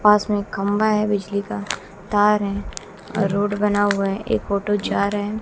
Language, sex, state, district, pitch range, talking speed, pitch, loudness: Hindi, female, Bihar, West Champaran, 200-210 Hz, 190 wpm, 205 Hz, -21 LUFS